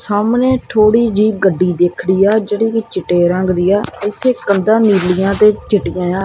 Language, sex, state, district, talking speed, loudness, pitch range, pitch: Punjabi, male, Punjab, Kapurthala, 165 wpm, -13 LUFS, 185-220 Hz, 205 Hz